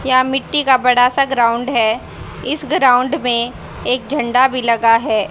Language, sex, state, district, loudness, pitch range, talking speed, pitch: Hindi, female, Haryana, Jhajjar, -15 LUFS, 235-265 Hz, 170 wpm, 250 Hz